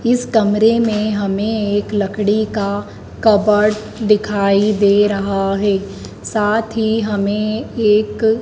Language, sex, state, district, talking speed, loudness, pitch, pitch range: Hindi, female, Madhya Pradesh, Dhar, 115 wpm, -16 LUFS, 210 Hz, 205-220 Hz